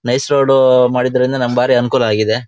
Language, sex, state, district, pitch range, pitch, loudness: Kannada, male, Karnataka, Shimoga, 120-130 Hz, 125 Hz, -13 LUFS